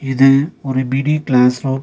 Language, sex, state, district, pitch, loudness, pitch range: Tamil, male, Tamil Nadu, Nilgiris, 135 Hz, -15 LUFS, 130-140 Hz